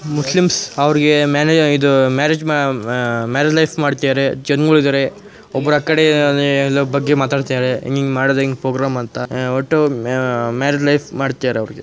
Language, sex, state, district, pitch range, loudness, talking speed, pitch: Kannada, male, Karnataka, Chamarajanagar, 130-150 Hz, -16 LUFS, 160 wpm, 140 Hz